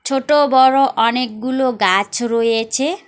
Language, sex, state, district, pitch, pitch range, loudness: Bengali, female, West Bengal, Alipurduar, 255 Hz, 230-270 Hz, -15 LUFS